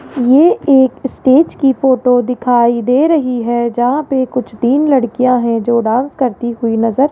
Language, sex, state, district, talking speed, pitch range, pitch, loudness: Hindi, female, Rajasthan, Jaipur, 175 wpm, 240-270 Hz, 250 Hz, -13 LUFS